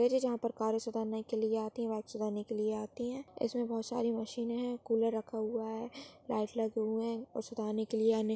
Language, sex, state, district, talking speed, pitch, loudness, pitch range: Hindi, male, Maharashtra, Dhule, 230 wpm, 225 Hz, -36 LUFS, 220-235 Hz